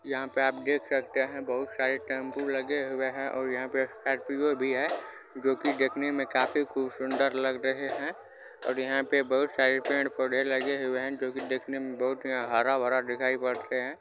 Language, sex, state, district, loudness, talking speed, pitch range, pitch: Hindi, male, Bihar, Supaul, -29 LUFS, 215 wpm, 130-135 Hz, 130 Hz